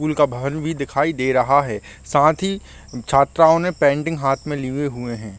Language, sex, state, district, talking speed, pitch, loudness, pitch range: Hindi, male, Jharkhand, Sahebganj, 200 wpm, 140 Hz, -19 LUFS, 130-155 Hz